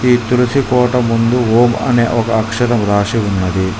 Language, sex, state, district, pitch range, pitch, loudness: Telugu, male, Telangana, Mahabubabad, 110-125 Hz, 120 Hz, -13 LUFS